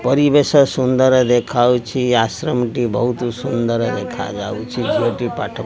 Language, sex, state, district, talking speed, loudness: Odia, male, Odisha, Khordha, 125 wpm, -17 LUFS